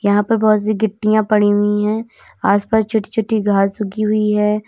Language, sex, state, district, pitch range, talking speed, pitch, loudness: Hindi, female, Uttar Pradesh, Lalitpur, 205-220 Hz, 190 wpm, 215 Hz, -16 LUFS